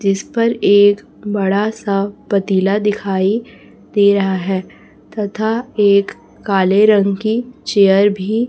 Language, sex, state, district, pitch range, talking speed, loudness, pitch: Hindi, female, Chhattisgarh, Raipur, 195-215 Hz, 120 wpm, -15 LUFS, 205 Hz